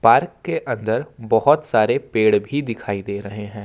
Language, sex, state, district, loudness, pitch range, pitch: Hindi, male, Jharkhand, Ranchi, -20 LUFS, 105-115 Hz, 110 Hz